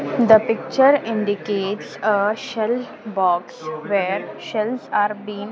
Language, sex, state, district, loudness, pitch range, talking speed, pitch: English, female, Maharashtra, Gondia, -20 LUFS, 200-225 Hz, 120 wpm, 210 Hz